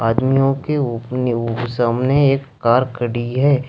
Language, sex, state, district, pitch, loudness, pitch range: Hindi, male, Jharkhand, Deoghar, 125 Hz, -18 LUFS, 120-135 Hz